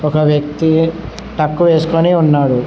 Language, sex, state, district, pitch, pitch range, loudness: Telugu, male, Telangana, Mahabubabad, 160 Hz, 150-165 Hz, -13 LUFS